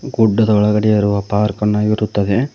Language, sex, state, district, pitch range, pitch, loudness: Kannada, male, Karnataka, Koppal, 105-110 Hz, 105 Hz, -15 LUFS